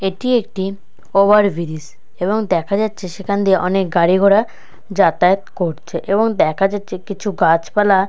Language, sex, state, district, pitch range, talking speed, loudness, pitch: Bengali, male, West Bengal, Dakshin Dinajpur, 180-205 Hz, 135 wpm, -17 LUFS, 195 Hz